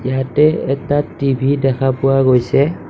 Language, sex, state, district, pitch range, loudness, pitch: Assamese, male, Assam, Kamrup Metropolitan, 130-145 Hz, -15 LUFS, 135 Hz